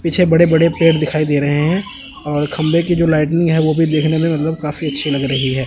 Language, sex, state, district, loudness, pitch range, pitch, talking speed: Hindi, male, Chandigarh, Chandigarh, -15 LUFS, 150-165 Hz, 160 Hz, 255 wpm